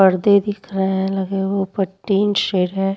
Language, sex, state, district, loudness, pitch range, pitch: Hindi, female, Uttar Pradesh, Muzaffarnagar, -19 LUFS, 190-200 Hz, 195 Hz